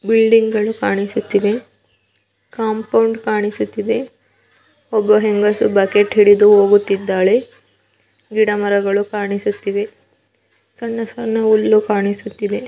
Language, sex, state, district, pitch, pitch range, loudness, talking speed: Kannada, female, Karnataka, Belgaum, 210 Hz, 205-220 Hz, -16 LUFS, 80 wpm